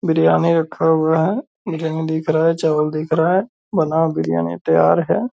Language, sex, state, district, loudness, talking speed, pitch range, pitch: Hindi, male, Bihar, Purnia, -18 LUFS, 190 wpm, 155-165 Hz, 160 Hz